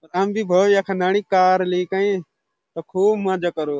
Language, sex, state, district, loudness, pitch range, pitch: Garhwali, male, Uttarakhand, Uttarkashi, -19 LUFS, 180-195 Hz, 185 Hz